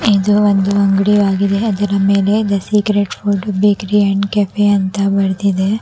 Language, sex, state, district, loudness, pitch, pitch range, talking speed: Kannada, female, Karnataka, Raichur, -14 LUFS, 200 Hz, 195-205 Hz, 135 wpm